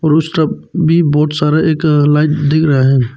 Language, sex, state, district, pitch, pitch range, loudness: Hindi, male, Arunachal Pradesh, Papum Pare, 155 Hz, 150-160 Hz, -12 LUFS